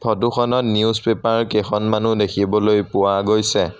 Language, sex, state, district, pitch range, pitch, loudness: Assamese, male, Assam, Sonitpur, 105-115 Hz, 110 Hz, -18 LUFS